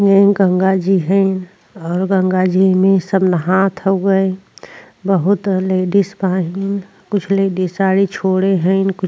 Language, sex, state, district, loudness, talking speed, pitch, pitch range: Bhojpuri, female, Uttar Pradesh, Deoria, -15 LUFS, 120 wpm, 190 Hz, 185-195 Hz